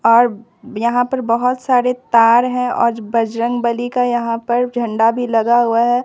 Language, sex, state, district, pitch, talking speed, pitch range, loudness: Hindi, female, Bihar, Katihar, 240 Hz, 170 wpm, 230-245 Hz, -16 LUFS